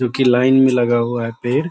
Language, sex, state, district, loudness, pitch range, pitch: Hindi, male, Bihar, Sitamarhi, -16 LUFS, 120-130 Hz, 125 Hz